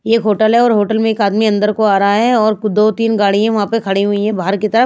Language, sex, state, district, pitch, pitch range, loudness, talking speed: Hindi, female, Bihar, Patna, 215 Hz, 205-225 Hz, -13 LUFS, 320 wpm